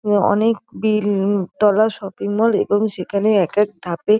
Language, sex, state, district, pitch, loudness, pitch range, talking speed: Bengali, female, West Bengal, North 24 Parganas, 205 Hz, -18 LUFS, 200-215 Hz, 170 wpm